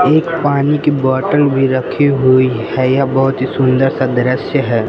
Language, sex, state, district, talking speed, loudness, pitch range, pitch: Hindi, male, Madhya Pradesh, Katni, 185 wpm, -13 LUFS, 130-145 Hz, 135 Hz